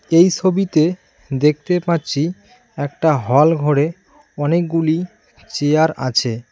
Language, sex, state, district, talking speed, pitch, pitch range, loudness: Bengali, male, West Bengal, Cooch Behar, 90 wpm, 160 Hz, 145-180 Hz, -17 LUFS